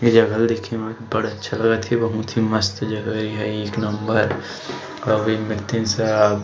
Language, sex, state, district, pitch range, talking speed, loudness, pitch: Chhattisgarhi, male, Chhattisgarh, Sarguja, 105-115 Hz, 205 wpm, -21 LUFS, 110 Hz